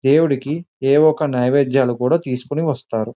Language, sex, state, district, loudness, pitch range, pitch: Telugu, male, Telangana, Nalgonda, -18 LUFS, 125-155 Hz, 135 Hz